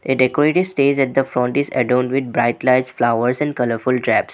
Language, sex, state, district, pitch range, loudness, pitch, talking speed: English, male, Assam, Sonitpur, 125-140 Hz, -17 LUFS, 130 Hz, 205 wpm